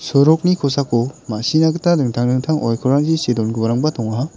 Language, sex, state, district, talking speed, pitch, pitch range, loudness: Garo, male, Meghalaya, West Garo Hills, 135 wpm, 140 Hz, 120-155 Hz, -17 LUFS